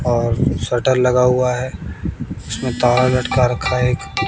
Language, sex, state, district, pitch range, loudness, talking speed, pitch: Hindi, male, Bihar, West Champaran, 120-125 Hz, -17 LUFS, 155 wpm, 125 Hz